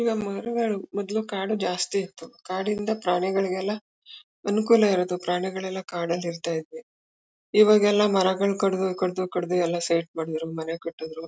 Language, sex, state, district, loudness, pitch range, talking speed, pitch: Kannada, female, Karnataka, Mysore, -25 LUFS, 170-205 Hz, 130 wpm, 185 Hz